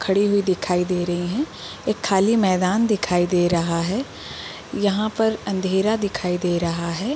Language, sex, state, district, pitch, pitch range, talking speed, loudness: Hindi, female, Bihar, Gopalganj, 190 Hz, 175-205 Hz, 175 wpm, -21 LUFS